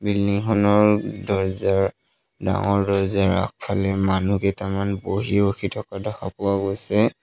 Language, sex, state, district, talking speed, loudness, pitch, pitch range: Assamese, male, Assam, Sonitpur, 115 wpm, -21 LUFS, 100 Hz, 95-100 Hz